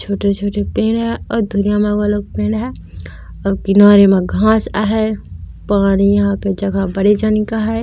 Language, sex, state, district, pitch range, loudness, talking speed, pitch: Chhattisgarhi, female, Chhattisgarh, Raigarh, 195-210 Hz, -15 LUFS, 170 wpm, 205 Hz